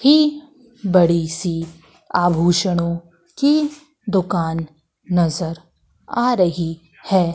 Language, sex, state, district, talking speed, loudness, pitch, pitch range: Hindi, female, Madhya Pradesh, Katni, 80 wpm, -19 LUFS, 175 Hz, 165-235 Hz